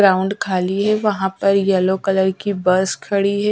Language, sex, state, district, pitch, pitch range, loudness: Hindi, female, Bihar, West Champaran, 195 Hz, 190-200 Hz, -18 LUFS